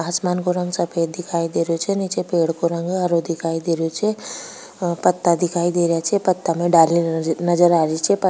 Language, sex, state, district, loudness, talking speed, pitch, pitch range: Rajasthani, female, Rajasthan, Nagaur, -20 LUFS, 210 wpm, 170 Hz, 165-180 Hz